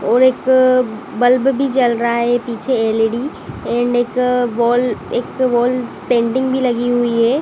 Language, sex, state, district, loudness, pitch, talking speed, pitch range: Hindi, female, Chhattisgarh, Bilaspur, -16 LUFS, 245 Hz, 160 wpm, 235-255 Hz